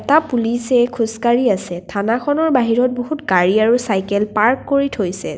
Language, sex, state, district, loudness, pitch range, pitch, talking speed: Assamese, female, Assam, Kamrup Metropolitan, -17 LUFS, 205-255 Hz, 235 Hz, 155 wpm